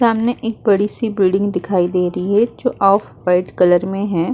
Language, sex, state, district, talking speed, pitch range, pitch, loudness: Hindi, female, Uttar Pradesh, Muzaffarnagar, 180 wpm, 180-225 Hz, 200 Hz, -17 LUFS